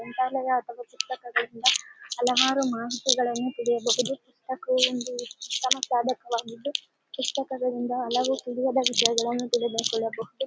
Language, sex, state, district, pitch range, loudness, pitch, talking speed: Kannada, female, Karnataka, Mysore, 240-260 Hz, -26 LUFS, 250 Hz, 55 wpm